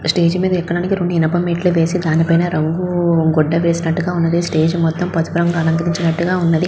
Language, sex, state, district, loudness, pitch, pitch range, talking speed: Telugu, female, Andhra Pradesh, Visakhapatnam, -16 LUFS, 170 Hz, 165-175 Hz, 180 wpm